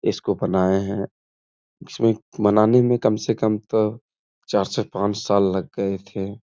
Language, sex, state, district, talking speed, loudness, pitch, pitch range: Hindi, male, Uttar Pradesh, Etah, 160 wpm, -21 LUFS, 100 Hz, 95-110 Hz